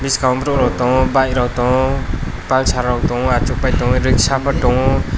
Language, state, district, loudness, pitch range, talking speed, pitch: Kokborok, Tripura, West Tripura, -16 LUFS, 125-135 Hz, 160 wpm, 130 Hz